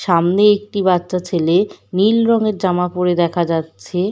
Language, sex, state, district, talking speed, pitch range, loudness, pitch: Bengali, female, West Bengal, Dakshin Dinajpur, 145 wpm, 175-205 Hz, -16 LUFS, 180 Hz